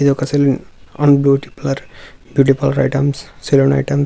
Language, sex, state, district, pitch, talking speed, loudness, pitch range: Telugu, male, Andhra Pradesh, Visakhapatnam, 140 Hz, 175 wpm, -15 LUFS, 135-140 Hz